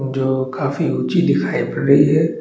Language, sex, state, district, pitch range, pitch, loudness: Hindi, male, Chhattisgarh, Bastar, 135-155 Hz, 140 Hz, -17 LUFS